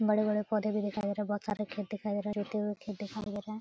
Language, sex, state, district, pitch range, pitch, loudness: Hindi, female, Bihar, Araria, 205-215 Hz, 210 Hz, -34 LUFS